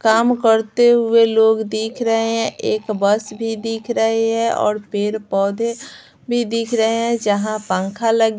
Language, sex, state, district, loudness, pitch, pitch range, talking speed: Hindi, female, Bihar, Patna, -18 LUFS, 225 Hz, 215-230 Hz, 165 wpm